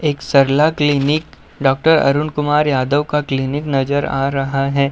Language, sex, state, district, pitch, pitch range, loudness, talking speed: Hindi, male, Uttar Pradesh, Budaun, 140 Hz, 135-150 Hz, -16 LUFS, 160 wpm